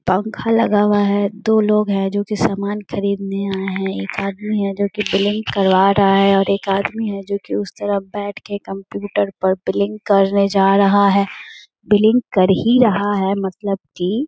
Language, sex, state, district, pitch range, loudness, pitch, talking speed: Hindi, female, Bihar, Gaya, 195-205 Hz, -17 LUFS, 200 Hz, 205 wpm